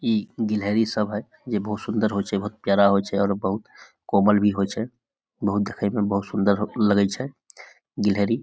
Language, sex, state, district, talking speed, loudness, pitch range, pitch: Maithili, male, Bihar, Samastipur, 205 wpm, -23 LUFS, 100-110 Hz, 105 Hz